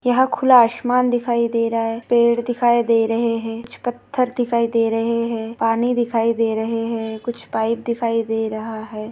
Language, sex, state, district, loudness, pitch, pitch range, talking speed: Hindi, female, Maharashtra, Pune, -19 LUFS, 230 Hz, 225-240 Hz, 190 wpm